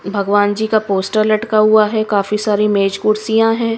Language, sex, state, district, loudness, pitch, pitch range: Hindi, female, Haryana, Rohtak, -15 LUFS, 215 Hz, 205-220 Hz